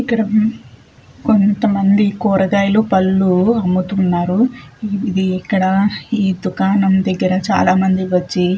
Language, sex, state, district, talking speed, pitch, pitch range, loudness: Telugu, female, Andhra Pradesh, Chittoor, 85 wpm, 195 Hz, 185-210 Hz, -15 LUFS